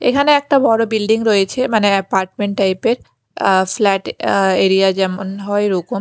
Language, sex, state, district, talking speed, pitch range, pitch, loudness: Bengali, female, Chhattisgarh, Raipur, 160 wpm, 190-230 Hz, 200 Hz, -15 LUFS